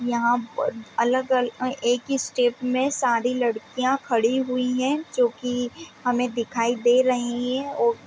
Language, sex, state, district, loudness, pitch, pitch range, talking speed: Hindi, female, Chhattisgarh, Raigarh, -24 LUFS, 250 Hz, 240-260 Hz, 140 wpm